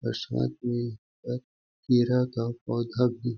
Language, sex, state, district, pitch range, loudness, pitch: Hindi, male, Chhattisgarh, Balrampur, 115-125 Hz, -28 LUFS, 120 Hz